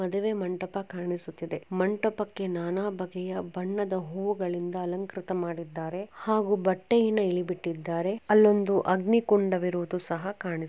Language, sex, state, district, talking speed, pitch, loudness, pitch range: Kannada, female, Karnataka, Chamarajanagar, 95 wpm, 185 Hz, -28 LUFS, 175-205 Hz